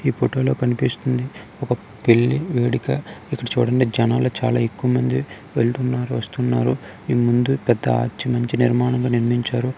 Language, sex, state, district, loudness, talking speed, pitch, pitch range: Telugu, male, Karnataka, Gulbarga, -20 LUFS, 125 wpm, 125 Hz, 120-125 Hz